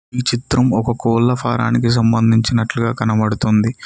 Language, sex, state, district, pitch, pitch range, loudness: Telugu, male, Telangana, Mahabubabad, 115 Hz, 115-120 Hz, -16 LUFS